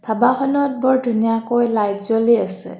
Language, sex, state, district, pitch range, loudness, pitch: Assamese, female, Assam, Kamrup Metropolitan, 220-255 Hz, -17 LUFS, 230 Hz